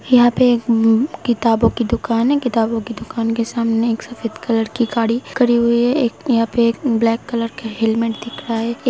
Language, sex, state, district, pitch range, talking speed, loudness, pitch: Hindi, female, Uttar Pradesh, Hamirpur, 230-240 Hz, 230 wpm, -17 LUFS, 230 Hz